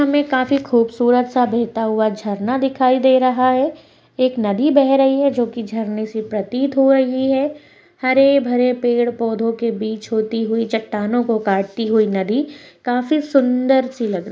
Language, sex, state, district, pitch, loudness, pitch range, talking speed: Hindi, female, Maharashtra, Dhule, 245 Hz, -17 LUFS, 225-270 Hz, 180 wpm